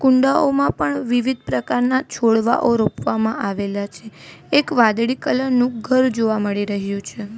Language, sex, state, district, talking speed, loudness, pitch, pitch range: Gujarati, female, Gujarat, Valsad, 140 wpm, -19 LUFS, 225 Hz, 200-255 Hz